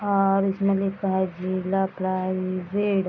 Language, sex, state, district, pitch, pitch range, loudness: Hindi, female, Bihar, Madhepura, 195 Hz, 185-195 Hz, -24 LUFS